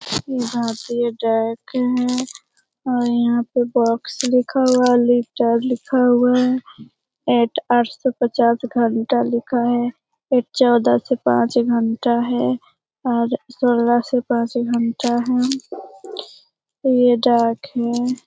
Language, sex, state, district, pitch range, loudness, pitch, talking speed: Hindi, female, Bihar, Lakhisarai, 235-255 Hz, -19 LUFS, 245 Hz, 120 wpm